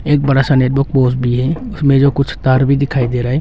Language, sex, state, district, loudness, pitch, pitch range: Hindi, male, Arunachal Pradesh, Longding, -14 LUFS, 135 Hz, 130-140 Hz